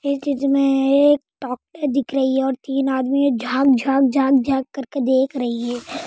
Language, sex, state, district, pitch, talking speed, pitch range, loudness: Hindi, female, Andhra Pradesh, Anantapur, 270 Hz, 110 wpm, 260-275 Hz, -19 LUFS